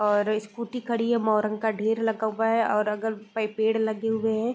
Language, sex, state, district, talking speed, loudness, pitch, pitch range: Hindi, female, Bihar, Gopalganj, 235 wpm, -26 LUFS, 220 Hz, 215-225 Hz